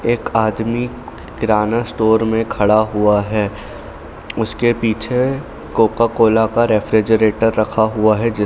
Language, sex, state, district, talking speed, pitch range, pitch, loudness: Hindi, male, Bihar, Saran, 115 wpm, 110-115 Hz, 110 Hz, -16 LUFS